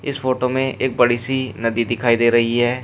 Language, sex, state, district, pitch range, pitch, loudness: Hindi, male, Uttar Pradesh, Shamli, 120-130 Hz, 120 Hz, -18 LUFS